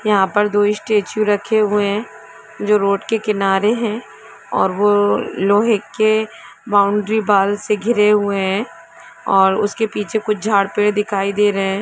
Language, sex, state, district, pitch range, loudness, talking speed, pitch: Hindi, female, Jharkhand, Jamtara, 200-215 Hz, -17 LUFS, 155 wpm, 205 Hz